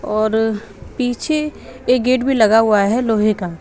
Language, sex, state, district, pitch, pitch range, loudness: Hindi, female, Bihar, Patna, 225 Hz, 215-250 Hz, -16 LUFS